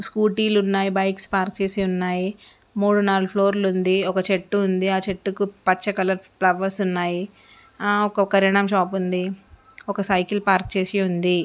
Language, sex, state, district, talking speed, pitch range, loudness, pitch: Telugu, female, Andhra Pradesh, Srikakulam, 150 wpm, 185-200 Hz, -21 LUFS, 195 Hz